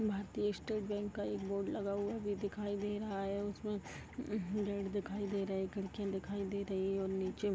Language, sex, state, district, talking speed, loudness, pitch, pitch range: Hindi, female, Uttar Pradesh, Gorakhpur, 220 wpm, -39 LUFS, 200 Hz, 195-205 Hz